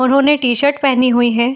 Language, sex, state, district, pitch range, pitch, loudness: Hindi, female, Uttar Pradesh, Etah, 245-280 Hz, 255 Hz, -13 LUFS